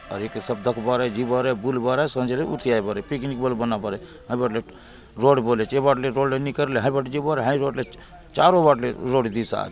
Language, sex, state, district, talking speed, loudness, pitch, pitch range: Halbi, male, Chhattisgarh, Bastar, 230 wpm, -23 LUFS, 130 Hz, 120-140 Hz